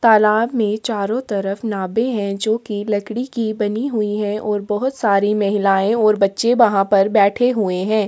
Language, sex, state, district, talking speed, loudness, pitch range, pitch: Hindi, female, Chhattisgarh, Kabirdham, 180 wpm, -18 LUFS, 200-225 Hz, 210 Hz